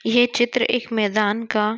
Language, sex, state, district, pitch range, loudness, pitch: Hindi, female, Jharkhand, Sahebganj, 215-240 Hz, -20 LUFS, 225 Hz